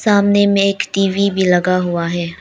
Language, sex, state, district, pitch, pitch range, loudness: Hindi, female, Arunachal Pradesh, Lower Dibang Valley, 195 Hz, 180-200 Hz, -15 LUFS